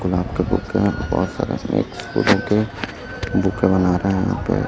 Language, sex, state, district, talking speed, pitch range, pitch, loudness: Hindi, male, Chhattisgarh, Raipur, 190 wpm, 95-110 Hz, 95 Hz, -20 LUFS